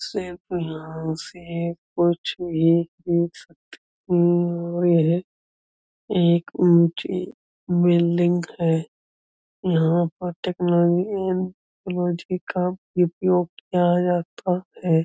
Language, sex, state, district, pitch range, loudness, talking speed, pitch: Hindi, male, Uttar Pradesh, Budaun, 170-180 Hz, -22 LUFS, 60 wpm, 175 Hz